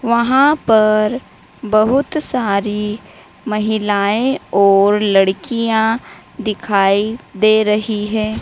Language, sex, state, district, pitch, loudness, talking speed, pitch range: Hindi, female, Madhya Pradesh, Dhar, 215 Hz, -15 LUFS, 80 wpm, 205-230 Hz